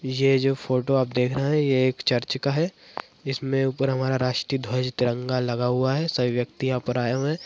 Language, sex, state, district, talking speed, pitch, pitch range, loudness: Hindi, female, Bihar, Madhepura, 225 wpm, 130 Hz, 125-135 Hz, -24 LUFS